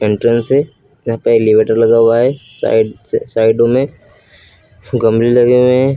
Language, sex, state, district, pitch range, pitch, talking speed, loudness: Hindi, male, Uttar Pradesh, Lucknow, 110-125 Hz, 115 Hz, 160 wpm, -12 LUFS